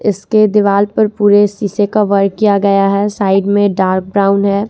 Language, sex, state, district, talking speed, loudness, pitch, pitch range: Hindi, female, Jharkhand, Ranchi, 190 wpm, -12 LUFS, 200 Hz, 200-205 Hz